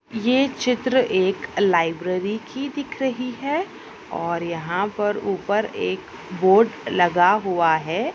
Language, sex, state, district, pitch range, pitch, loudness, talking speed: Hindi, female, Rajasthan, Nagaur, 180-250 Hz, 205 Hz, -22 LUFS, 125 wpm